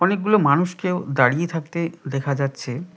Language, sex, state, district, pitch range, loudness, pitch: Bengali, male, West Bengal, Cooch Behar, 140-180 Hz, -21 LUFS, 165 Hz